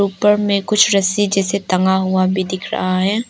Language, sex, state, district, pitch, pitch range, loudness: Hindi, female, Arunachal Pradesh, Lower Dibang Valley, 195 Hz, 185-205 Hz, -16 LUFS